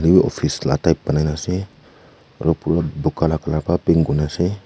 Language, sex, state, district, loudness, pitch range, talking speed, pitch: Nagamese, female, Nagaland, Kohima, -19 LUFS, 75-90 Hz, 205 wpm, 85 Hz